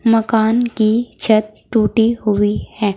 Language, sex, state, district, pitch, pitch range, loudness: Hindi, female, Uttar Pradesh, Saharanpur, 220 Hz, 215-230 Hz, -16 LUFS